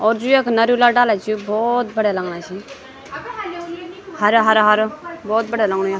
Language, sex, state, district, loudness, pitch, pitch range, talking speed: Garhwali, female, Uttarakhand, Tehri Garhwal, -17 LUFS, 225 Hz, 210-270 Hz, 180 wpm